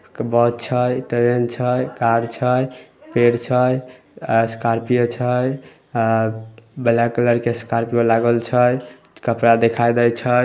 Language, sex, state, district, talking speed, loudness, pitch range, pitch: Maithili, male, Bihar, Samastipur, 115 wpm, -18 LUFS, 115-125 Hz, 120 Hz